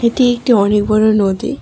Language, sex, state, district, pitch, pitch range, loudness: Bengali, female, West Bengal, Alipurduar, 220 Hz, 210-245 Hz, -13 LUFS